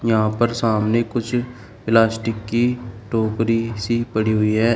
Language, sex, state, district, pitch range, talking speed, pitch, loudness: Hindi, male, Uttar Pradesh, Shamli, 110-120 Hz, 140 wpm, 115 Hz, -20 LUFS